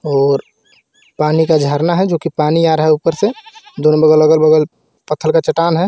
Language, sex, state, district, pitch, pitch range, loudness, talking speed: Hindi, male, Jharkhand, Garhwa, 160 Hz, 155-170 Hz, -13 LUFS, 215 wpm